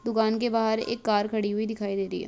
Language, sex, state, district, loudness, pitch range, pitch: Hindi, female, Bihar, Madhepura, -27 LUFS, 210-225 Hz, 220 Hz